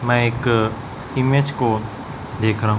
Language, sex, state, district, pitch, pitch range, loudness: Hindi, male, Chhattisgarh, Raipur, 120 Hz, 110-130 Hz, -20 LUFS